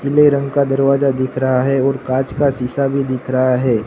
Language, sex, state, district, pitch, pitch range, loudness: Hindi, male, Gujarat, Gandhinagar, 135 Hz, 130-140 Hz, -16 LUFS